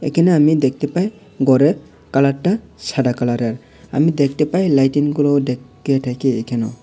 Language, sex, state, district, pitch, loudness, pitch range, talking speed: Bengali, male, Tripura, Unakoti, 140 Hz, -17 LUFS, 130-150 Hz, 130 wpm